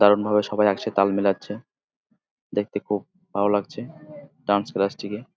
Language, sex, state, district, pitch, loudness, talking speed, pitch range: Bengali, male, West Bengal, Jalpaiguri, 105 Hz, -24 LUFS, 145 wpm, 100-110 Hz